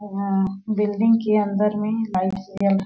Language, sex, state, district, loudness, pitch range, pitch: Hindi, female, Chhattisgarh, Sarguja, -22 LUFS, 195-210 Hz, 205 Hz